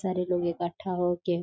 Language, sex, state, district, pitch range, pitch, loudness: Hindi, female, Bihar, East Champaran, 175-180 Hz, 175 Hz, -29 LUFS